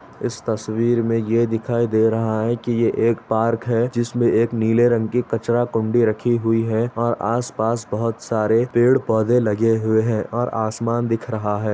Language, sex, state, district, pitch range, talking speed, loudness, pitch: Hindi, male, Chhattisgarh, Bastar, 110-120 Hz, 195 wpm, -20 LUFS, 115 Hz